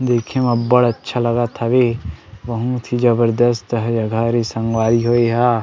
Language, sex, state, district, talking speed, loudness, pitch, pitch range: Chhattisgarhi, male, Chhattisgarh, Sarguja, 170 wpm, -17 LUFS, 120 Hz, 115-120 Hz